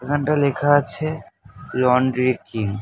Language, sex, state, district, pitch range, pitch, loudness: Bengali, male, West Bengal, North 24 Parganas, 125-145 Hz, 130 Hz, -20 LUFS